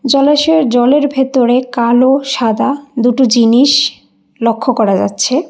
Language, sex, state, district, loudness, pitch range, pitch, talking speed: Bengali, female, Karnataka, Bangalore, -11 LUFS, 235-275 Hz, 255 Hz, 110 wpm